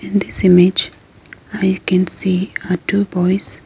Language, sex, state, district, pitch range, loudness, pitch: English, female, Arunachal Pradesh, Lower Dibang Valley, 180-195 Hz, -16 LUFS, 185 Hz